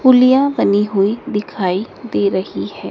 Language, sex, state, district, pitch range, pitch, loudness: Hindi, male, Madhya Pradesh, Dhar, 195-255 Hz, 210 Hz, -16 LUFS